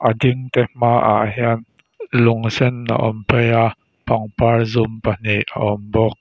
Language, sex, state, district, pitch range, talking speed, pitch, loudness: Mizo, male, Mizoram, Aizawl, 110-120 Hz, 135 wpm, 115 Hz, -18 LUFS